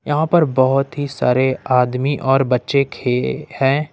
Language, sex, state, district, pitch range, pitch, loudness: Hindi, male, Jharkhand, Ranchi, 130-145 Hz, 135 Hz, -17 LUFS